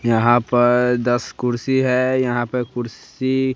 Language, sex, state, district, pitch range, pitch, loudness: Hindi, male, Bihar, West Champaran, 120-130 Hz, 125 Hz, -19 LUFS